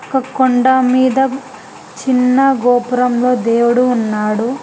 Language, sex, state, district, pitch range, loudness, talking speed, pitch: Telugu, female, Telangana, Hyderabad, 245-260 Hz, -13 LUFS, 90 wpm, 250 Hz